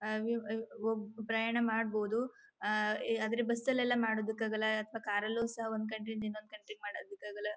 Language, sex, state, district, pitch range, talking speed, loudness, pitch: Kannada, female, Karnataka, Chamarajanagar, 215-230 Hz, 175 wpm, -36 LUFS, 220 Hz